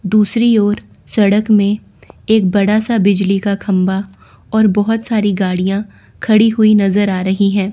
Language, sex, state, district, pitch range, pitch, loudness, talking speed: Hindi, female, Chandigarh, Chandigarh, 195-215 Hz, 205 Hz, -14 LUFS, 155 wpm